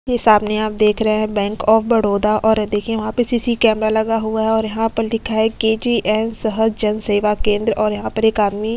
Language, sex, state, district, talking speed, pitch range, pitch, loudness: Hindi, female, Uttar Pradesh, Etah, 240 wpm, 215-225 Hz, 220 Hz, -17 LUFS